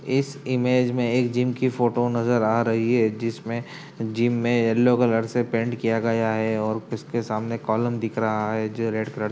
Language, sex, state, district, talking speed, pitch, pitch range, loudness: Hindi, male, Uttar Pradesh, Jyotiba Phule Nagar, 205 wpm, 115 Hz, 110-120 Hz, -23 LUFS